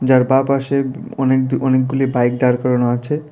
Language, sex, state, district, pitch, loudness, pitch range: Bengali, male, Tripura, West Tripura, 130 Hz, -16 LUFS, 125-135 Hz